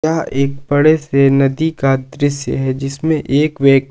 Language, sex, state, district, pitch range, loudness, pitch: Hindi, male, Jharkhand, Palamu, 135-155 Hz, -15 LUFS, 140 Hz